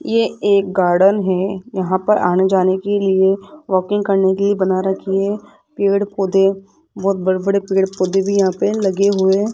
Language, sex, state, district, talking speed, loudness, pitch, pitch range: Hindi, female, Rajasthan, Jaipur, 180 wpm, -16 LUFS, 195 Hz, 190-200 Hz